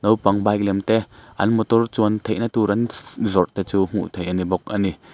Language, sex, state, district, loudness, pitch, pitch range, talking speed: Mizo, male, Mizoram, Aizawl, -21 LUFS, 105 Hz, 100-110 Hz, 235 wpm